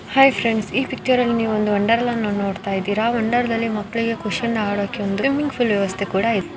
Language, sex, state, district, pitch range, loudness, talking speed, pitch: Kannada, female, Karnataka, Belgaum, 205-240 Hz, -20 LUFS, 175 wpm, 225 Hz